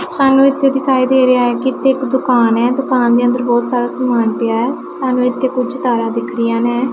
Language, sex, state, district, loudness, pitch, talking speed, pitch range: Punjabi, female, Punjab, Pathankot, -14 LUFS, 250 Hz, 225 wpm, 240-265 Hz